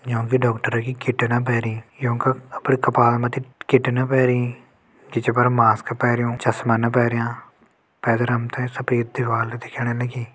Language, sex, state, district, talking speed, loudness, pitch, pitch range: Garhwali, male, Uttarakhand, Uttarkashi, 155 wpm, -21 LUFS, 120 Hz, 115-125 Hz